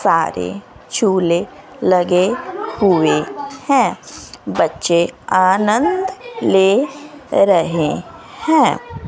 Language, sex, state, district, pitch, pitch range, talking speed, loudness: Hindi, female, Haryana, Rohtak, 215 Hz, 180-295 Hz, 65 wpm, -16 LUFS